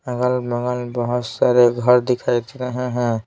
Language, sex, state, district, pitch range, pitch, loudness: Hindi, male, Bihar, Patna, 120-125 Hz, 125 Hz, -19 LUFS